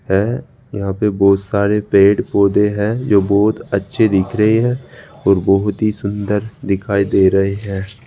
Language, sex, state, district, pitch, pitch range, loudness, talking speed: Hindi, male, Rajasthan, Jaipur, 100 Hz, 100-110 Hz, -15 LUFS, 165 wpm